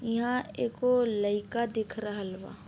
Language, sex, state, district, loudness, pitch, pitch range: Bhojpuri, female, Uttar Pradesh, Deoria, -30 LUFS, 230 Hz, 210-240 Hz